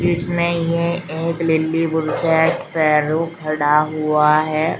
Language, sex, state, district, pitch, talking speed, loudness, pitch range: Hindi, female, Uttar Pradesh, Shamli, 160 Hz, 110 wpm, -18 LUFS, 155-165 Hz